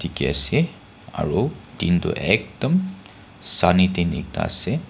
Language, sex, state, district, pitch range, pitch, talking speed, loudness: Nagamese, male, Nagaland, Kohima, 90-95 Hz, 95 Hz, 125 wpm, -22 LUFS